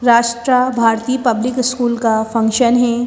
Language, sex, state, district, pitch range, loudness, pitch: Hindi, female, Madhya Pradesh, Bhopal, 230-250 Hz, -15 LUFS, 240 Hz